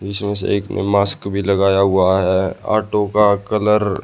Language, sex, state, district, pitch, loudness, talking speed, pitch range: Hindi, male, Haryana, Rohtak, 100 Hz, -17 LUFS, 195 wpm, 95-105 Hz